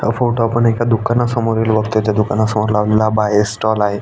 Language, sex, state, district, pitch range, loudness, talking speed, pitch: Marathi, male, Maharashtra, Aurangabad, 105-115 Hz, -15 LUFS, 210 wpm, 110 Hz